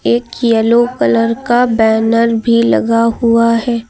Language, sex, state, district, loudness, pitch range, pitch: Hindi, female, Uttar Pradesh, Lucknow, -12 LUFS, 230-235 Hz, 230 Hz